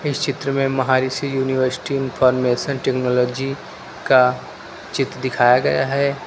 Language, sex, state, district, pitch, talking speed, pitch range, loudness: Hindi, male, Uttar Pradesh, Lucknow, 130 Hz, 115 wpm, 130-135 Hz, -19 LUFS